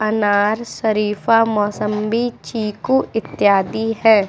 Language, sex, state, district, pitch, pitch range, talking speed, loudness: Hindi, female, Uttar Pradesh, Muzaffarnagar, 215 Hz, 210-225 Hz, 85 wpm, -18 LUFS